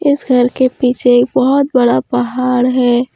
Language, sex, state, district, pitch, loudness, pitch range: Hindi, female, Jharkhand, Deoghar, 250 Hz, -13 LUFS, 245-260 Hz